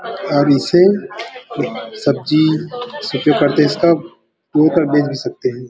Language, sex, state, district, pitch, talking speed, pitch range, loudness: Hindi, male, Chhattisgarh, Bilaspur, 150 Hz, 30 wpm, 145-170 Hz, -15 LUFS